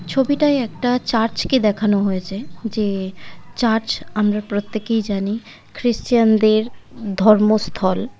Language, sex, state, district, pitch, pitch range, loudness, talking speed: Bengali, female, West Bengal, Malda, 220 Hz, 205-230 Hz, -19 LUFS, 110 wpm